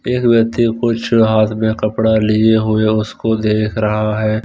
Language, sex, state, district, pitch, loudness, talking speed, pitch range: Hindi, male, Punjab, Fazilka, 110 Hz, -14 LUFS, 160 wpm, 110-115 Hz